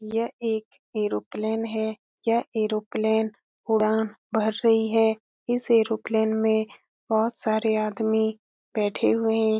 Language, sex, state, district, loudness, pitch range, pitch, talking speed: Hindi, female, Bihar, Lakhisarai, -25 LUFS, 220-225 Hz, 220 Hz, 120 wpm